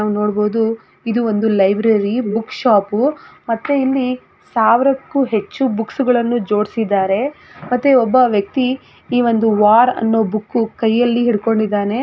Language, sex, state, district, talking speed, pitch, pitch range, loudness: Kannada, female, Karnataka, Gulbarga, 115 wpm, 230 Hz, 215-250 Hz, -16 LUFS